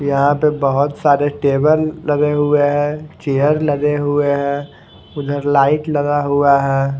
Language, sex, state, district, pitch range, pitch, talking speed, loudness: Hindi, male, Odisha, Khordha, 140-150 Hz, 145 Hz, 145 wpm, -16 LUFS